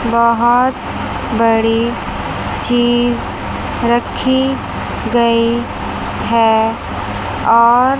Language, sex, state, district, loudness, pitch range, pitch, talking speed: Hindi, female, Chandigarh, Chandigarh, -15 LUFS, 230-240 Hz, 235 Hz, 50 wpm